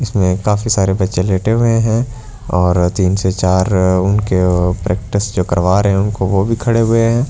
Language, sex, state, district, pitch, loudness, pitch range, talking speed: Hindi, male, Delhi, New Delhi, 95 Hz, -14 LUFS, 90-115 Hz, 190 wpm